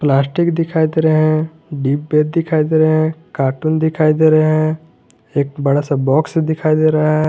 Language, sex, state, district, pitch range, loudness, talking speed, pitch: Hindi, male, Jharkhand, Garhwa, 145-160 Hz, -15 LUFS, 190 wpm, 155 Hz